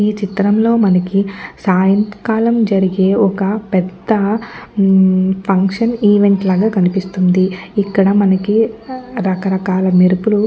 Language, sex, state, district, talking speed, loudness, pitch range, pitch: Telugu, female, Andhra Pradesh, Guntur, 90 wpm, -14 LUFS, 190-210 Hz, 195 Hz